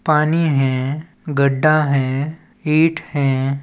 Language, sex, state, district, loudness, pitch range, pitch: Chhattisgarhi, male, Chhattisgarh, Balrampur, -18 LUFS, 135-155 Hz, 150 Hz